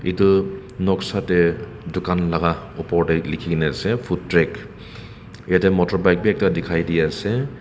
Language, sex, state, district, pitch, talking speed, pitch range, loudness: Nagamese, male, Nagaland, Kohima, 90 Hz, 160 wpm, 85-100 Hz, -20 LUFS